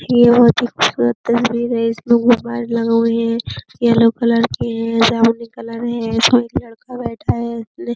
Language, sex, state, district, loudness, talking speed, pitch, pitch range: Hindi, female, Uttar Pradesh, Jyotiba Phule Nagar, -16 LUFS, 150 wpm, 235 Hz, 230-235 Hz